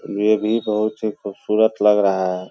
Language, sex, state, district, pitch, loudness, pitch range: Hindi, male, Bihar, Muzaffarpur, 105 Hz, -19 LUFS, 100-110 Hz